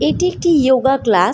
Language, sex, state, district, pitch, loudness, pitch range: Bengali, female, West Bengal, Malda, 265 Hz, -14 LUFS, 240-330 Hz